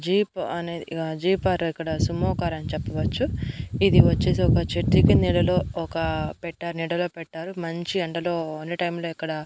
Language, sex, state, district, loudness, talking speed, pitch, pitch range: Telugu, female, Andhra Pradesh, Annamaya, -24 LUFS, 160 wpm, 170 Hz, 165-175 Hz